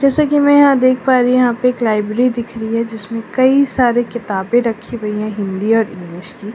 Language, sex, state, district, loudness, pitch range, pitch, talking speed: Hindi, female, Delhi, New Delhi, -15 LUFS, 215-255 Hz, 235 Hz, 245 wpm